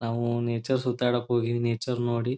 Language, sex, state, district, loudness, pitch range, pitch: Kannada, male, Karnataka, Belgaum, -27 LUFS, 120-125 Hz, 120 Hz